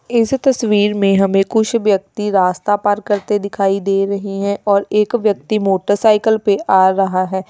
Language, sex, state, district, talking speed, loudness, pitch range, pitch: Hindi, female, Uttar Pradesh, Lalitpur, 170 wpm, -15 LUFS, 195-210 Hz, 205 Hz